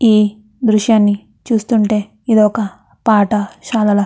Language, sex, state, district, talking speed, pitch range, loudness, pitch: Telugu, female, Andhra Pradesh, Chittoor, 120 wpm, 210-225 Hz, -15 LUFS, 215 Hz